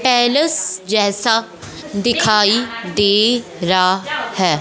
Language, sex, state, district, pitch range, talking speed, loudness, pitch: Hindi, female, Punjab, Fazilka, 185-230 Hz, 80 wpm, -16 LUFS, 210 Hz